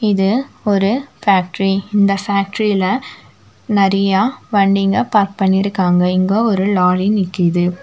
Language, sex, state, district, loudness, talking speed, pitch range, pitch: Tamil, female, Tamil Nadu, Nilgiris, -15 LUFS, 100 wpm, 190-210 Hz, 195 Hz